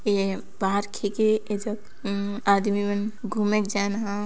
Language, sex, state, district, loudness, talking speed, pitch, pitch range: Sadri, female, Chhattisgarh, Jashpur, -26 LUFS, 140 wpm, 205 Hz, 200-215 Hz